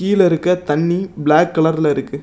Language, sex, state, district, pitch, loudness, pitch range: Tamil, male, Tamil Nadu, Namakkal, 165 Hz, -16 LUFS, 150-180 Hz